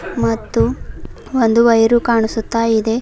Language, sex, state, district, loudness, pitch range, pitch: Kannada, female, Karnataka, Bidar, -15 LUFS, 225-235 Hz, 230 Hz